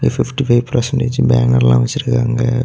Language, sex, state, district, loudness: Tamil, male, Tamil Nadu, Kanyakumari, -14 LUFS